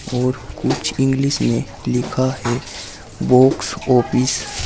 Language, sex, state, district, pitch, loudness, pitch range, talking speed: Hindi, male, Uttar Pradesh, Saharanpur, 125 Hz, -18 LUFS, 105-130 Hz, 115 wpm